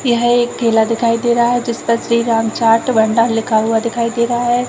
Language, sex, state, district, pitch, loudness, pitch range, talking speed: Hindi, female, Chhattisgarh, Raigarh, 235 Hz, -15 LUFS, 225-240 Hz, 245 wpm